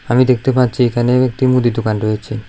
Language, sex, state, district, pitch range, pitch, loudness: Bengali, male, Tripura, South Tripura, 110-125 Hz, 125 Hz, -15 LUFS